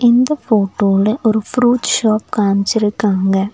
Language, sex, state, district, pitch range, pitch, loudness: Tamil, female, Tamil Nadu, Nilgiris, 200-240 Hz, 215 Hz, -15 LUFS